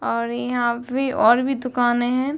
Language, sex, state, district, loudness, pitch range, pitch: Hindi, female, Bihar, Darbhanga, -21 LUFS, 240-260 Hz, 245 Hz